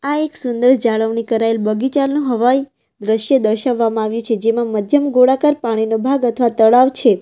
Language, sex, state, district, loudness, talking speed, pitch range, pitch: Gujarati, female, Gujarat, Valsad, -15 LUFS, 160 wpm, 225-265 Hz, 240 Hz